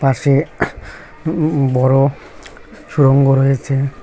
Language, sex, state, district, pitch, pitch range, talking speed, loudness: Bengali, male, West Bengal, Cooch Behar, 135 Hz, 135-145 Hz, 75 wpm, -15 LUFS